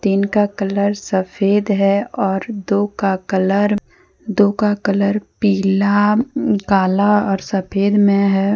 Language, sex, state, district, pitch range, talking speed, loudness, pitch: Hindi, female, Jharkhand, Deoghar, 195-210 Hz, 125 wpm, -17 LUFS, 200 Hz